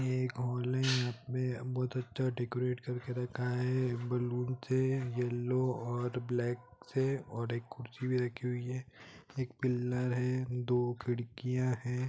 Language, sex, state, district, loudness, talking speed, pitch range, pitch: Hindi, male, Jharkhand, Jamtara, -35 LUFS, 155 wpm, 125-130 Hz, 125 Hz